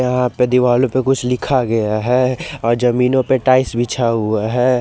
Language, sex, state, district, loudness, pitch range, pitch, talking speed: Hindi, male, Jharkhand, Garhwa, -16 LUFS, 120-130 Hz, 125 Hz, 185 wpm